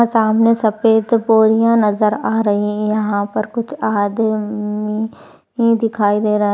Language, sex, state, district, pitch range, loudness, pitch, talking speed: Hindi, female, Maharashtra, Pune, 210-225 Hz, -16 LUFS, 220 Hz, 145 wpm